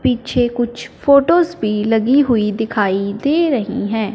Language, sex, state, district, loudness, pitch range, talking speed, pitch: Hindi, female, Punjab, Fazilka, -16 LUFS, 215-280 Hz, 145 wpm, 240 Hz